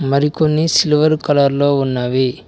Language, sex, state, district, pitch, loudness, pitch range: Telugu, male, Telangana, Mahabubabad, 145 Hz, -15 LUFS, 135-155 Hz